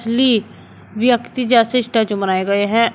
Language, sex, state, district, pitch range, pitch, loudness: Hindi, male, Uttar Pradesh, Shamli, 210-245 Hz, 230 Hz, -16 LUFS